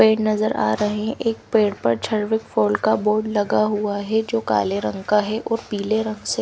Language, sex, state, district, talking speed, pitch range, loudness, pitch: Hindi, female, Himachal Pradesh, Shimla, 225 wpm, 205-220 Hz, -21 LUFS, 210 Hz